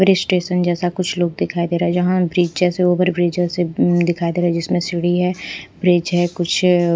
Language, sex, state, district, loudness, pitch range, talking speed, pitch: Hindi, female, Punjab, Pathankot, -18 LUFS, 175-180 Hz, 215 wpm, 175 Hz